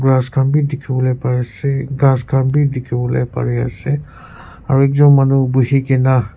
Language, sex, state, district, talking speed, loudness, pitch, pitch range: Nagamese, male, Nagaland, Kohima, 130 wpm, -15 LUFS, 135 Hz, 125-135 Hz